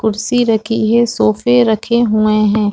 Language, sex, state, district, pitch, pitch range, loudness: Hindi, female, Chhattisgarh, Rajnandgaon, 220 Hz, 215-235 Hz, -13 LUFS